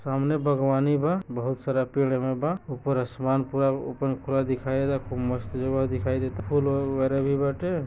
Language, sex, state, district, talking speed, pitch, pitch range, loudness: Bhojpuri, male, Bihar, East Champaran, 45 wpm, 135 Hz, 130-140 Hz, -26 LUFS